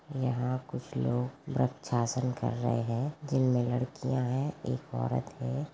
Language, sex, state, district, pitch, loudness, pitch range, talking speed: Hindi, female, Chhattisgarh, Rajnandgaon, 125 Hz, -32 LUFS, 120-135 Hz, 145 wpm